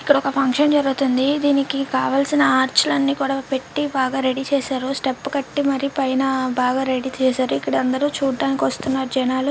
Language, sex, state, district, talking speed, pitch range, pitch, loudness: Telugu, female, Andhra Pradesh, Chittoor, 160 wpm, 260-275 Hz, 270 Hz, -20 LUFS